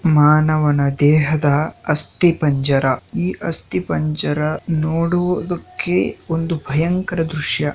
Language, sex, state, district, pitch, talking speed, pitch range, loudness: Kannada, male, Karnataka, Shimoga, 155 Hz, 70 wpm, 145-165 Hz, -18 LUFS